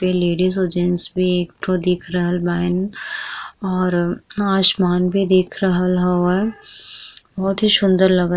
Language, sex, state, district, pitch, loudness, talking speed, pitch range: Bhojpuri, female, Bihar, East Champaran, 185 Hz, -18 LUFS, 150 wpm, 180-195 Hz